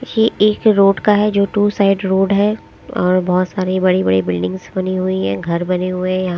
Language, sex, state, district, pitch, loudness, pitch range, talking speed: Hindi, female, Himachal Pradesh, Shimla, 185 Hz, -16 LUFS, 180-205 Hz, 225 wpm